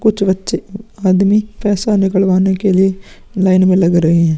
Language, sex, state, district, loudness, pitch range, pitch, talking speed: Hindi, male, Uttar Pradesh, Muzaffarnagar, -13 LUFS, 185-205 Hz, 190 Hz, 165 wpm